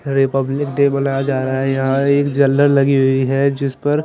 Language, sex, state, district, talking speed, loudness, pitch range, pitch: Hindi, male, Chandigarh, Chandigarh, 205 wpm, -16 LUFS, 135-140 Hz, 140 Hz